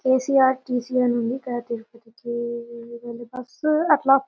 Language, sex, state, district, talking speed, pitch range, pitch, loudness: Telugu, female, Telangana, Nalgonda, 100 wpm, 235-260 Hz, 245 Hz, -23 LUFS